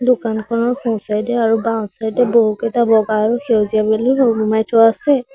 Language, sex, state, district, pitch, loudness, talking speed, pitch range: Assamese, female, Assam, Sonitpur, 225 Hz, -16 LUFS, 180 wpm, 220-240 Hz